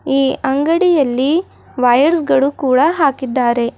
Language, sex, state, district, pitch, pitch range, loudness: Kannada, female, Karnataka, Bidar, 275 Hz, 255-305 Hz, -14 LUFS